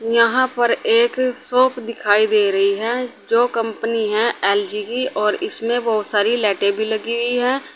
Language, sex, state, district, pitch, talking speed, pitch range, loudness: Hindi, female, Uttar Pradesh, Saharanpur, 230 Hz, 170 wpm, 210-245 Hz, -18 LUFS